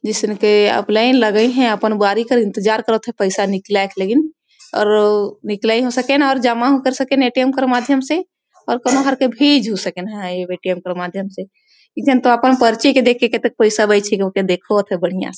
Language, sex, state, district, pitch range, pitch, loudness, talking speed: Sadri, female, Chhattisgarh, Jashpur, 200-260 Hz, 220 Hz, -16 LUFS, 175 wpm